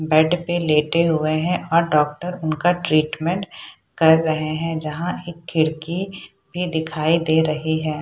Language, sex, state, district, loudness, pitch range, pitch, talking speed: Hindi, female, Bihar, Purnia, -20 LUFS, 155-175 Hz, 160 Hz, 150 wpm